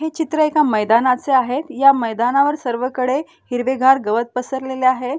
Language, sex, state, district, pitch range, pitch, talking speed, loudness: Marathi, female, Maharashtra, Solapur, 245-280 Hz, 260 Hz, 140 wpm, -17 LUFS